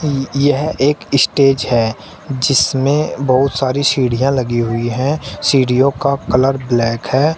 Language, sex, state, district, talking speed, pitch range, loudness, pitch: Hindi, male, Uttar Pradesh, Shamli, 130 wpm, 125-140 Hz, -15 LUFS, 135 Hz